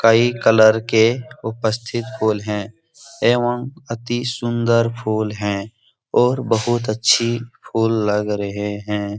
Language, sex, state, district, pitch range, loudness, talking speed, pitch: Hindi, male, Bihar, Jahanabad, 110-120 Hz, -19 LUFS, 115 wpm, 115 Hz